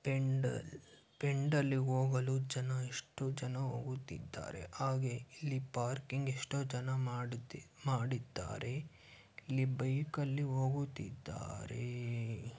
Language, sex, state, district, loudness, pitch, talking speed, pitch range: Kannada, male, Karnataka, Chamarajanagar, -39 LUFS, 130 Hz, 85 wpm, 125-135 Hz